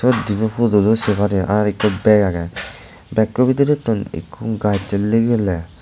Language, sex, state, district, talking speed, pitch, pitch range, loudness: Chakma, male, Tripura, West Tripura, 135 wpm, 105 Hz, 100-115 Hz, -18 LUFS